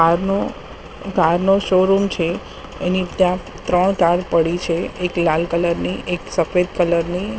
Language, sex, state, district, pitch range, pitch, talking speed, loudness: Gujarati, female, Maharashtra, Mumbai Suburban, 170-185 Hz, 180 Hz, 160 wpm, -19 LUFS